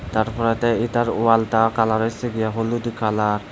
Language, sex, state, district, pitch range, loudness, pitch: Bengali, male, Tripura, Unakoti, 110-115 Hz, -20 LUFS, 115 Hz